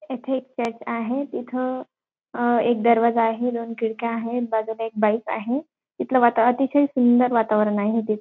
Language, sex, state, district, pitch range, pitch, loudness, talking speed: Marathi, female, Maharashtra, Dhule, 225-255 Hz, 235 Hz, -22 LUFS, 170 wpm